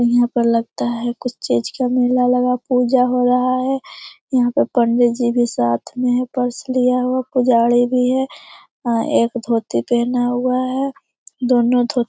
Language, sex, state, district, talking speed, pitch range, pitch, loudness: Hindi, female, Bihar, Jamui, 175 wpm, 240-255 Hz, 250 Hz, -18 LUFS